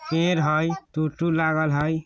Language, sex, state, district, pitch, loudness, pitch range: Bajjika, male, Bihar, Vaishali, 160 Hz, -23 LUFS, 155-165 Hz